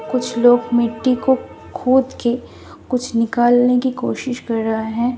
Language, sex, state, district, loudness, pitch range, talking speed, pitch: Hindi, female, Delhi, New Delhi, -18 LUFS, 235-255 Hz, 150 wpm, 245 Hz